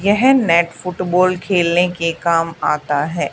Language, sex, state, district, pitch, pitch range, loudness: Hindi, female, Haryana, Charkhi Dadri, 175 Hz, 165-185 Hz, -16 LUFS